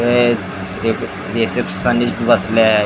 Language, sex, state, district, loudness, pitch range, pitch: Marathi, male, Maharashtra, Gondia, -17 LUFS, 95-120 Hz, 110 Hz